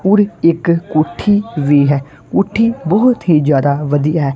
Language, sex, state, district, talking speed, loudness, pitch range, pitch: Punjabi, male, Punjab, Kapurthala, 150 wpm, -14 LUFS, 145-205 Hz, 160 Hz